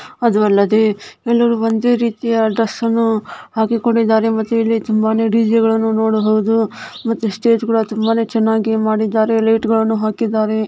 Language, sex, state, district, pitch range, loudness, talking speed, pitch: Kannada, female, Karnataka, Raichur, 220-230 Hz, -16 LUFS, 125 wpm, 225 Hz